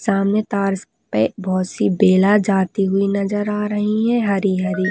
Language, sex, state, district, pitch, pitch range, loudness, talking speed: Hindi, female, West Bengal, Dakshin Dinajpur, 195 Hz, 190-210 Hz, -18 LUFS, 195 wpm